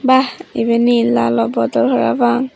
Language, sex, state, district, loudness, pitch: Chakma, female, Tripura, Dhalai, -15 LUFS, 235 Hz